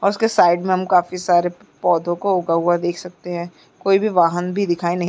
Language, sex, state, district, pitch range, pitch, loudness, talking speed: Hindi, female, Uttarakhand, Uttarkashi, 175-185 Hz, 175 Hz, -19 LUFS, 245 wpm